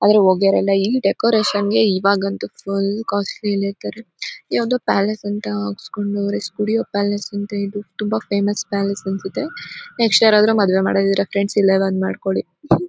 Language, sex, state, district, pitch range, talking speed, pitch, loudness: Kannada, female, Karnataka, Mysore, 195-210 Hz, 140 wpm, 200 Hz, -19 LUFS